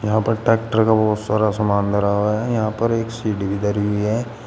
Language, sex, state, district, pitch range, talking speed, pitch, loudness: Hindi, male, Uttar Pradesh, Shamli, 105-115 Hz, 240 wpm, 110 Hz, -19 LUFS